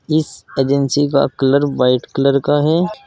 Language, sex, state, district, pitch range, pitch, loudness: Hindi, male, Uttar Pradesh, Saharanpur, 135-150 Hz, 140 Hz, -16 LUFS